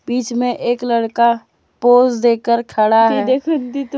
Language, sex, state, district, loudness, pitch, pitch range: Hindi, female, Jharkhand, Deoghar, -15 LUFS, 240 Hz, 235-255 Hz